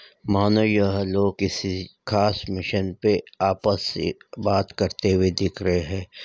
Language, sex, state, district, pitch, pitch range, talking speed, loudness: Hindi, female, Maharashtra, Nagpur, 100 Hz, 95-100 Hz, 145 wpm, -23 LUFS